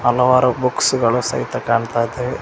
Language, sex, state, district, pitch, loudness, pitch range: Kannada, male, Karnataka, Koppal, 125 Hz, -17 LUFS, 115-125 Hz